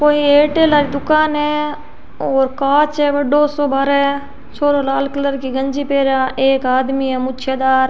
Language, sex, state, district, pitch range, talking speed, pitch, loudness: Rajasthani, female, Rajasthan, Churu, 270-295 Hz, 160 wpm, 280 Hz, -16 LUFS